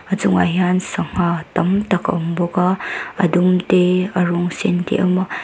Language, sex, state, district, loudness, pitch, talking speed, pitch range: Mizo, female, Mizoram, Aizawl, -18 LUFS, 180 Hz, 210 wpm, 175-185 Hz